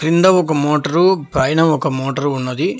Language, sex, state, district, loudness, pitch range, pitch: Telugu, male, Telangana, Hyderabad, -15 LUFS, 140-165 Hz, 155 Hz